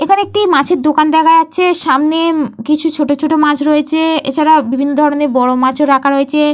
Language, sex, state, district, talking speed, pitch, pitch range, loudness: Bengali, female, Jharkhand, Jamtara, 190 wpm, 300 Hz, 285-320 Hz, -12 LUFS